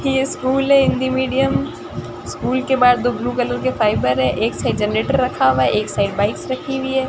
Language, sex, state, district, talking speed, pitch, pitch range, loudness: Hindi, female, Rajasthan, Barmer, 220 wpm, 255 Hz, 210-265 Hz, -18 LUFS